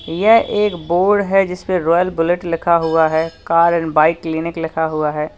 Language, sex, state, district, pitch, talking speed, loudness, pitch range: Hindi, male, Uttar Pradesh, Lalitpur, 165 Hz, 190 wpm, -16 LUFS, 160-180 Hz